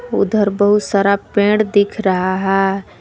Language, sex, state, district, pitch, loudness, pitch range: Hindi, female, Jharkhand, Palamu, 200 Hz, -15 LUFS, 195-210 Hz